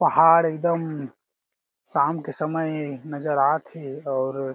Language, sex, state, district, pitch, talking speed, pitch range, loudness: Chhattisgarhi, male, Chhattisgarh, Jashpur, 150 Hz, 120 wpm, 140-160 Hz, -23 LUFS